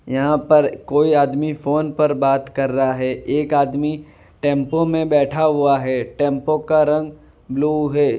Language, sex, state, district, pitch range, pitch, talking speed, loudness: Hindi, male, Gujarat, Valsad, 135-150 Hz, 145 Hz, 160 wpm, -18 LUFS